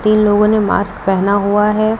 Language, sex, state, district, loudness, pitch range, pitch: Hindi, female, Uttar Pradesh, Lucknow, -14 LUFS, 200-215 Hz, 210 Hz